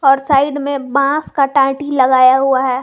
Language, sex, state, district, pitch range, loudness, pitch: Hindi, female, Jharkhand, Garhwa, 260-280 Hz, -13 LUFS, 275 Hz